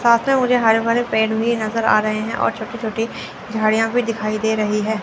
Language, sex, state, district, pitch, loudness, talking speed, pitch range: Hindi, female, Chandigarh, Chandigarh, 225 Hz, -19 LUFS, 225 wpm, 220-235 Hz